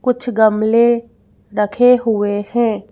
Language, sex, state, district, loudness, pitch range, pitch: Hindi, female, Madhya Pradesh, Bhopal, -15 LUFS, 215-240 Hz, 225 Hz